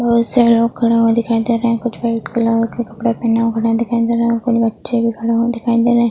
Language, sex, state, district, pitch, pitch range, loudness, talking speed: Hindi, female, Uttar Pradesh, Jalaun, 230 Hz, 230-235 Hz, -16 LUFS, 275 wpm